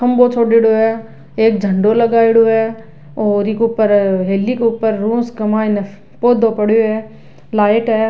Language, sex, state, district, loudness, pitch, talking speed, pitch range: Rajasthani, female, Rajasthan, Nagaur, -14 LUFS, 220 Hz, 140 wpm, 210-230 Hz